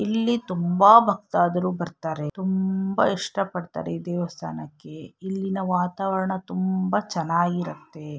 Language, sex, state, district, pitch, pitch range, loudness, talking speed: Kannada, female, Karnataka, Shimoga, 185 Hz, 170-195 Hz, -24 LUFS, 105 wpm